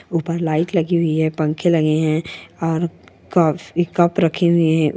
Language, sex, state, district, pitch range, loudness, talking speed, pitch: Hindi, female, Rajasthan, Churu, 155-170 Hz, -18 LUFS, 145 wpm, 165 Hz